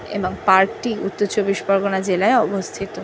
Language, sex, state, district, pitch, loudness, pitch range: Bengali, female, West Bengal, North 24 Parganas, 195 Hz, -19 LUFS, 190-205 Hz